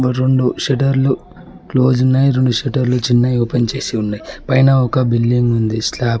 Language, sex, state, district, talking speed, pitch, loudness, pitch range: Telugu, male, Telangana, Mahabubabad, 155 wpm, 125 Hz, -15 LUFS, 120-130 Hz